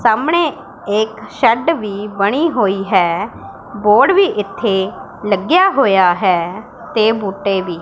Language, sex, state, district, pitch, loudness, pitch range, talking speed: Punjabi, female, Punjab, Pathankot, 210 Hz, -15 LUFS, 195-245 Hz, 125 wpm